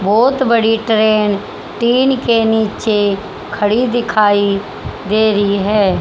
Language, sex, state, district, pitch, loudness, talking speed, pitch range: Hindi, female, Haryana, Charkhi Dadri, 215 Hz, -14 LUFS, 110 wpm, 205-235 Hz